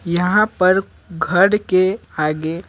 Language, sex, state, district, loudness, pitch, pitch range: Hindi, male, Bihar, Patna, -17 LUFS, 185 Hz, 170-195 Hz